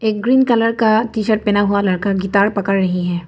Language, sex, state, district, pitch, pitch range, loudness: Hindi, female, Arunachal Pradesh, Papum Pare, 205 Hz, 195-220 Hz, -16 LUFS